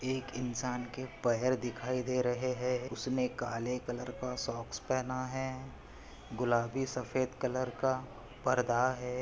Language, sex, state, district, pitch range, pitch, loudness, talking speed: Hindi, male, Maharashtra, Chandrapur, 120-130 Hz, 125 Hz, -35 LUFS, 135 wpm